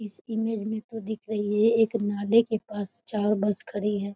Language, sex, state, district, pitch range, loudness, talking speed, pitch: Maithili, female, Bihar, Muzaffarpur, 205-220 Hz, -26 LUFS, 200 wpm, 215 Hz